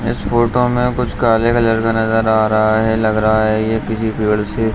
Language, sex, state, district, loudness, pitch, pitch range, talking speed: Hindi, male, Bihar, Jahanabad, -15 LUFS, 110 Hz, 110-115 Hz, 240 wpm